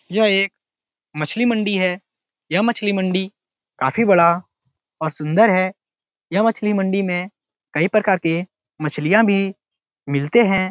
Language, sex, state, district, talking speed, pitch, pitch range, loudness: Hindi, male, Bihar, Araria, 135 wpm, 190 Hz, 170-210 Hz, -18 LUFS